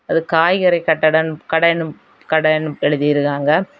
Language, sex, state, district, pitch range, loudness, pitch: Tamil, female, Tamil Nadu, Kanyakumari, 150-165 Hz, -16 LUFS, 160 Hz